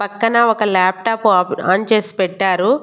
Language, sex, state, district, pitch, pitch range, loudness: Telugu, female, Andhra Pradesh, Annamaya, 205 Hz, 185-225 Hz, -15 LUFS